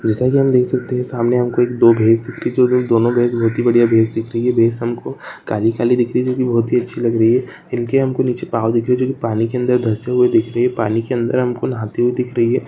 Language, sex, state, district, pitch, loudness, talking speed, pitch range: Hindi, female, Rajasthan, Churu, 120 Hz, -16 LUFS, 285 wpm, 115-125 Hz